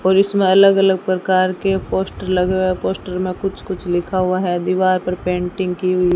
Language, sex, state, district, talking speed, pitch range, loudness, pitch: Hindi, female, Rajasthan, Bikaner, 225 wpm, 180-190 Hz, -17 LUFS, 185 Hz